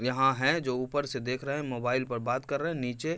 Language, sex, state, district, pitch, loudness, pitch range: Hindi, male, Uttar Pradesh, Hamirpur, 130 Hz, -30 LUFS, 125-140 Hz